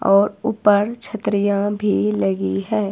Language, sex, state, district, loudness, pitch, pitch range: Hindi, female, Himachal Pradesh, Shimla, -19 LUFS, 205 Hz, 195-210 Hz